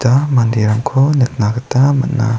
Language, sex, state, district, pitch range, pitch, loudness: Garo, male, Meghalaya, South Garo Hills, 115-135 Hz, 125 Hz, -14 LUFS